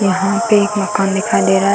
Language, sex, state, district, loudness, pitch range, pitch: Hindi, female, Bihar, Gaya, -15 LUFS, 195-210 Hz, 200 Hz